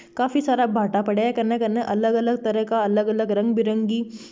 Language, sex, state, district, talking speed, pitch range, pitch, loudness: Marwari, female, Rajasthan, Nagaur, 150 wpm, 215-235 Hz, 225 Hz, -22 LUFS